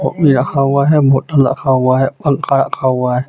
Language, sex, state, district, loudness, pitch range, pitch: Hindi, male, Jharkhand, Deoghar, -13 LUFS, 130-140 Hz, 135 Hz